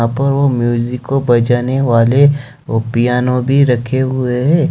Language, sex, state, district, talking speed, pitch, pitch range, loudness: Hindi, male, Jharkhand, Deoghar, 155 wpm, 125 Hz, 120-135 Hz, -14 LUFS